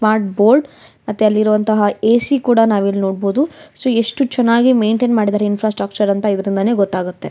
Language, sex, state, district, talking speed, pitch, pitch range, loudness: Kannada, female, Karnataka, Shimoga, 155 wpm, 215 Hz, 205-240 Hz, -15 LUFS